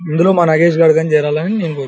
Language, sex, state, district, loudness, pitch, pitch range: Telugu, male, Andhra Pradesh, Anantapur, -13 LUFS, 160 Hz, 155-170 Hz